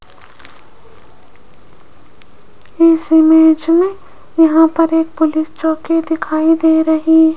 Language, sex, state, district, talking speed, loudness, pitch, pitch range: Hindi, female, Rajasthan, Jaipur, 100 wpm, -12 LUFS, 320 Hz, 320-330 Hz